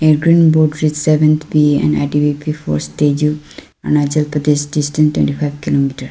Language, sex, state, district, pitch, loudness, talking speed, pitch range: English, female, Arunachal Pradesh, Lower Dibang Valley, 150 Hz, -14 LUFS, 155 wpm, 145-155 Hz